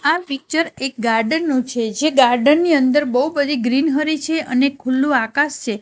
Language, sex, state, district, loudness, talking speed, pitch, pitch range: Gujarati, female, Gujarat, Gandhinagar, -17 LUFS, 185 wpm, 280 Hz, 255-305 Hz